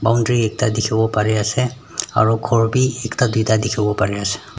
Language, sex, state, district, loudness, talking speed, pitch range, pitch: Nagamese, male, Nagaland, Dimapur, -18 LUFS, 170 wpm, 105-120 Hz, 110 Hz